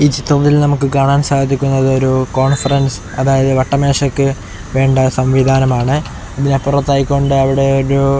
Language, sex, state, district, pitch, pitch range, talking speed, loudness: Malayalam, male, Kerala, Kozhikode, 135 Hz, 130-140 Hz, 110 wpm, -13 LUFS